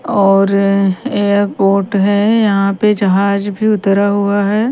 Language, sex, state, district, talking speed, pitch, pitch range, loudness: Hindi, female, Haryana, Rohtak, 125 wpm, 200 Hz, 195-205 Hz, -13 LUFS